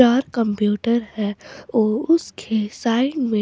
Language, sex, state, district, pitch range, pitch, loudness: Hindi, female, Bihar, West Champaran, 215-250 Hz, 230 Hz, -21 LUFS